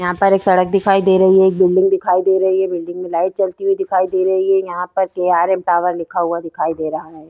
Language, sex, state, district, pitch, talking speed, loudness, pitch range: Hindi, female, Bihar, Vaishali, 185 Hz, 270 wpm, -16 LUFS, 175-190 Hz